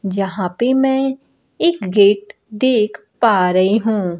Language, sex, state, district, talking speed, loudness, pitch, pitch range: Hindi, female, Bihar, Kaimur, 130 wpm, -16 LUFS, 210 Hz, 190-250 Hz